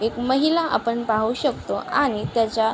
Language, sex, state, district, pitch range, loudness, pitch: Marathi, female, Maharashtra, Aurangabad, 225-265 Hz, -22 LUFS, 235 Hz